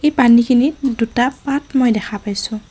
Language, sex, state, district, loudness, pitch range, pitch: Assamese, female, Assam, Kamrup Metropolitan, -16 LUFS, 225-270 Hz, 245 Hz